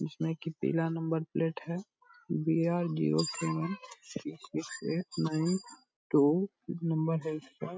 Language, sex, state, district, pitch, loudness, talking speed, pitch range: Hindi, male, Bihar, Purnia, 165 Hz, -33 LUFS, 140 wpm, 160-175 Hz